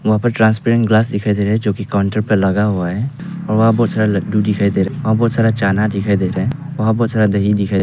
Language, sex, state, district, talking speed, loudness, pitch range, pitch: Hindi, male, Arunachal Pradesh, Papum Pare, 285 wpm, -16 LUFS, 100-115 Hz, 105 Hz